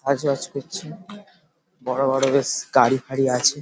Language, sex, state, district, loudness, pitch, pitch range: Bengali, male, West Bengal, Paschim Medinipur, -21 LUFS, 140 Hz, 135-170 Hz